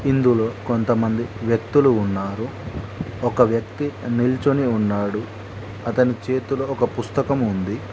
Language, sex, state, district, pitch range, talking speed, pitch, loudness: Telugu, male, Telangana, Mahabubabad, 105-130 Hz, 100 wpm, 115 Hz, -21 LUFS